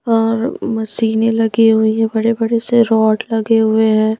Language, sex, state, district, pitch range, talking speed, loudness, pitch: Hindi, female, Madhya Pradesh, Bhopal, 220-225 Hz, 170 wpm, -14 LUFS, 225 Hz